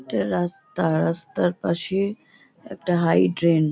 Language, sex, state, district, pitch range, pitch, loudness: Bengali, female, West Bengal, North 24 Parganas, 160-175 Hz, 170 Hz, -23 LUFS